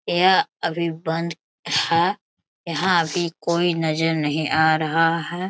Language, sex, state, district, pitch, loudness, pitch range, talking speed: Hindi, male, Bihar, Bhagalpur, 165 Hz, -21 LUFS, 160-170 Hz, 130 wpm